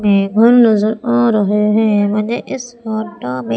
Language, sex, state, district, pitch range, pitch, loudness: Hindi, female, Madhya Pradesh, Umaria, 205-235 Hz, 220 Hz, -14 LUFS